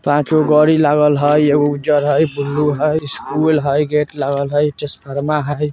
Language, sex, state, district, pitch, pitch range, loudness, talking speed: Bajjika, male, Bihar, Vaishali, 150 Hz, 145-150 Hz, -15 LUFS, 180 wpm